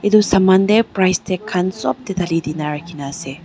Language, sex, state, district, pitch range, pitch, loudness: Nagamese, female, Nagaland, Dimapur, 155-195 Hz, 185 Hz, -17 LUFS